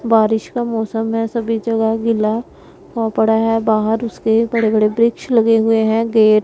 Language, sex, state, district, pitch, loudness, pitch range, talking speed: Hindi, female, Punjab, Pathankot, 225 Hz, -16 LUFS, 220-230 Hz, 175 wpm